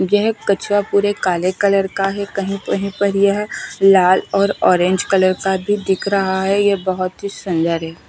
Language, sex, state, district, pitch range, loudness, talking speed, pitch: Hindi, female, Odisha, Malkangiri, 185-200 Hz, -17 LUFS, 185 wpm, 195 Hz